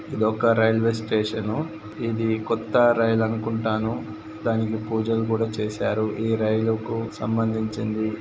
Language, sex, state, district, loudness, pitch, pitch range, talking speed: Telugu, male, Telangana, Karimnagar, -24 LUFS, 110 Hz, 110-115 Hz, 110 wpm